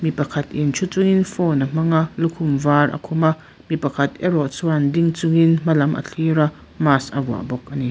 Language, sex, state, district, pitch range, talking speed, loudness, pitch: Mizo, female, Mizoram, Aizawl, 140-165 Hz, 220 wpm, -19 LUFS, 155 Hz